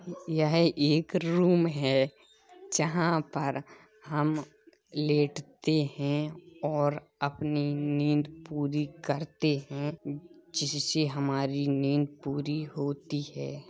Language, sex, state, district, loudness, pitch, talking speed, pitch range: Hindi, male, Uttar Pradesh, Hamirpur, -30 LUFS, 150 Hz, 90 wpm, 145-165 Hz